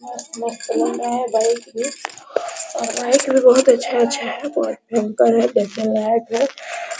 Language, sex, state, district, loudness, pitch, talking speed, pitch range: Hindi, female, Bihar, Araria, -18 LUFS, 235 Hz, 180 wpm, 225-265 Hz